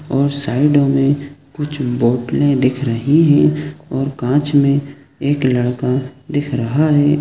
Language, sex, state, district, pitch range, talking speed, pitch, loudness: Hindi, male, Chhattisgarh, Sukma, 125-145 Hz, 135 wpm, 140 Hz, -16 LUFS